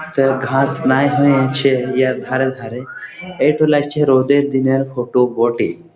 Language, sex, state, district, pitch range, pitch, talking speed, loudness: Bengali, male, West Bengal, Jhargram, 130-145 Hz, 135 Hz, 140 wpm, -15 LUFS